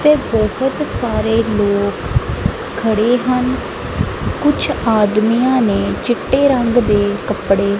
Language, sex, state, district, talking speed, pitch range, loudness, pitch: Punjabi, female, Punjab, Kapurthala, 100 wpm, 210-255 Hz, -16 LUFS, 225 Hz